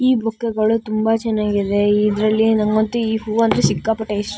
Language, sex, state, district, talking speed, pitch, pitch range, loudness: Kannada, female, Karnataka, Shimoga, 180 wpm, 220 Hz, 210-225 Hz, -18 LUFS